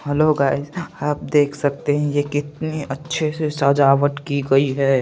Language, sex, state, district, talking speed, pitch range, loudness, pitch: Hindi, male, Chandigarh, Chandigarh, 165 wpm, 140-150 Hz, -19 LUFS, 145 Hz